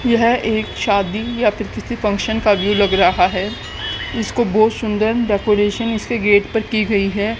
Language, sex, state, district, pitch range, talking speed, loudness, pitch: Hindi, female, Haryana, Jhajjar, 205-225 Hz, 180 wpm, -17 LUFS, 215 Hz